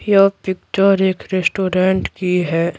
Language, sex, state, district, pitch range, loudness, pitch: Hindi, female, Bihar, Patna, 180-195 Hz, -17 LUFS, 190 Hz